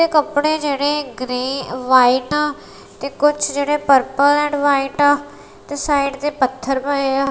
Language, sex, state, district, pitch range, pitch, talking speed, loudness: Punjabi, female, Punjab, Kapurthala, 270-295 Hz, 285 Hz, 150 wpm, -17 LUFS